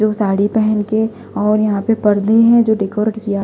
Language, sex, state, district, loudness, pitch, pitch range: Hindi, female, Delhi, New Delhi, -15 LUFS, 215 Hz, 205-220 Hz